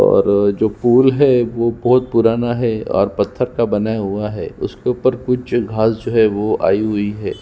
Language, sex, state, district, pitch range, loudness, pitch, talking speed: Hindi, male, Chhattisgarh, Sukma, 105-125 Hz, -16 LUFS, 115 Hz, 200 wpm